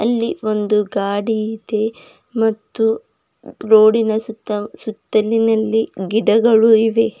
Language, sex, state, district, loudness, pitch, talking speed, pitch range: Kannada, female, Karnataka, Bidar, -17 LUFS, 220 Hz, 85 wpm, 215-225 Hz